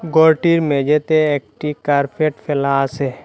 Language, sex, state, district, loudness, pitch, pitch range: Bengali, male, Assam, Hailakandi, -17 LUFS, 150 Hz, 140-155 Hz